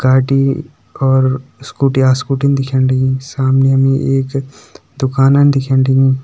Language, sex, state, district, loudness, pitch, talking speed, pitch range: Hindi, male, Uttarakhand, Tehri Garhwal, -13 LUFS, 135 Hz, 125 wpm, 130-135 Hz